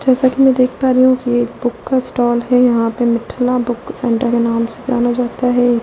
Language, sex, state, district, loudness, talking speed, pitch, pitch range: Hindi, female, Delhi, New Delhi, -15 LUFS, 245 wpm, 245 Hz, 240-255 Hz